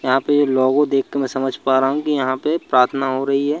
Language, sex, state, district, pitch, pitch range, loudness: Hindi, male, Madhya Pradesh, Bhopal, 135 Hz, 130-145 Hz, -18 LUFS